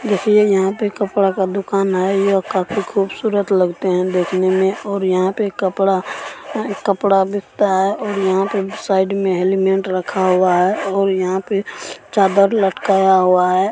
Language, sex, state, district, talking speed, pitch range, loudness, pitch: Maithili, female, Bihar, Supaul, 160 wpm, 190-200 Hz, -17 LUFS, 195 Hz